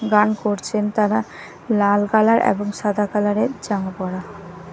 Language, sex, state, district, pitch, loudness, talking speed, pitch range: Bengali, female, Odisha, Nuapada, 205 Hz, -20 LUFS, 140 wpm, 190-210 Hz